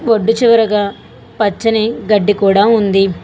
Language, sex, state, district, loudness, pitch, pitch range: Telugu, female, Telangana, Hyderabad, -13 LUFS, 210 Hz, 200-225 Hz